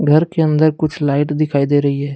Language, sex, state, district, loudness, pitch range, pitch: Hindi, male, Jharkhand, Deoghar, -16 LUFS, 140-155 Hz, 150 Hz